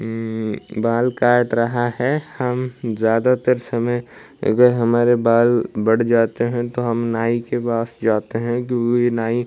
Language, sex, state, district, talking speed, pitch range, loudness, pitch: Hindi, male, Odisha, Malkangiri, 150 wpm, 115-120 Hz, -19 LUFS, 120 Hz